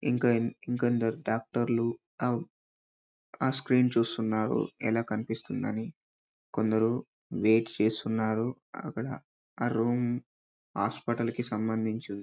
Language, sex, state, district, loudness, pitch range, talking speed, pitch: Telugu, male, Telangana, Karimnagar, -30 LUFS, 110-120 Hz, 90 wpm, 115 Hz